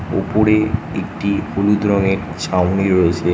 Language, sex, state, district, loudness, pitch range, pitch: Bengali, male, West Bengal, North 24 Parganas, -17 LUFS, 90-105 Hz, 95 Hz